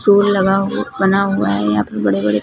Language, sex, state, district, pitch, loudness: Hindi, female, Punjab, Fazilka, 150 Hz, -15 LUFS